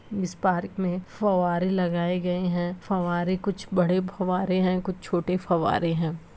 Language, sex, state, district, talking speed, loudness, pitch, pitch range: Hindi, female, Bihar, Gopalganj, 150 wpm, -26 LUFS, 180 Hz, 175-185 Hz